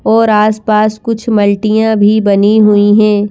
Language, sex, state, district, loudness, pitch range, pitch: Hindi, female, Madhya Pradesh, Bhopal, -10 LUFS, 205-220 Hz, 215 Hz